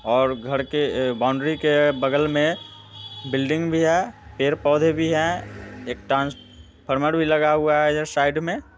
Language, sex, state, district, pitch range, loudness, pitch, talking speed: Hindi, male, Bihar, Muzaffarpur, 130-155 Hz, -21 LUFS, 145 Hz, 155 wpm